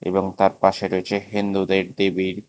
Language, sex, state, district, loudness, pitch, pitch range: Bengali, male, Tripura, West Tripura, -21 LUFS, 95 Hz, 95-100 Hz